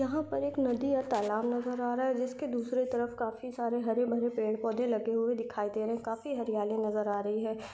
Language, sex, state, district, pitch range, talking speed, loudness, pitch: Hindi, female, Maharashtra, Chandrapur, 220-250 Hz, 225 wpm, -32 LUFS, 235 Hz